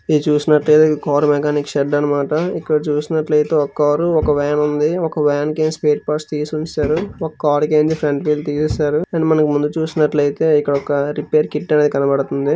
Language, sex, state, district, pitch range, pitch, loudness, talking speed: Telugu, male, Andhra Pradesh, Visakhapatnam, 145-155 Hz, 150 Hz, -17 LUFS, 165 wpm